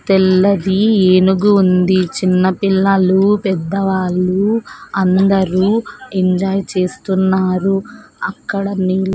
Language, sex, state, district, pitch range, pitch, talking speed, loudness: Telugu, female, Andhra Pradesh, Sri Satya Sai, 185-195 Hz, 190 Hz, 70 wpm, -14 LUFS